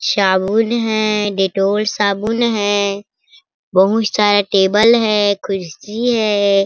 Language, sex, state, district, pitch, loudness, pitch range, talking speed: Hindi, female, Chhattisgarh, Sarguja, 205 Hz, -15 LUFS, 200-220 Hz, 110 wpm